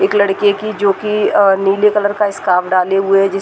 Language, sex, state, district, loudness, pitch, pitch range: Hindi, female, Bihar, Gaya, -14 LUFS, 200 Hz, 195-210 Hz